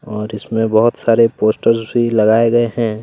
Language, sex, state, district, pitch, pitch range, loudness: Hindi, male, Chhattisgarh, Kabirdham, 115 Hz, 110-115 Hz, -14 LUFS